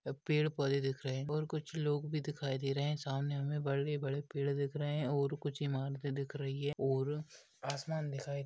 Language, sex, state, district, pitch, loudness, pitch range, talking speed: Hindi, male, Maharashtra, Nagpur, 140 Hz, -37 LUFS, 140-150 Hz, 205 wpm